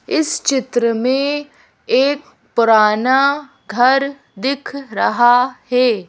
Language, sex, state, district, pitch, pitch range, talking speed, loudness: Hindi, female, Madhya Pradesh, Bhopal, 265 Hz, 240-280 Hz, 90 wpm, -16 LUFS